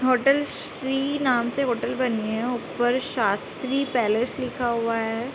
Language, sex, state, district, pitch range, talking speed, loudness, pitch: Hindi, female, Bihar, Sitamarhi, 235-265 Hz, 145 wpm, -24 LUFS, 245 Hz